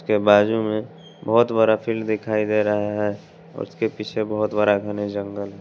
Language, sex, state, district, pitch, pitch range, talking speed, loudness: Hindi, male, Bihar, West Champaran, 105 Hz, 105-110 Hz, 170 wpm, -21 LUFS